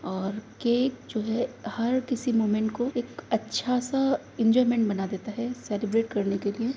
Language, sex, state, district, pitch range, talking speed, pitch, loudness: Hindi, female, Uttar Pradesh, Muzaffarnagar, 215-250 Hz, 170 wpm, 230 Hz, -27 LUFS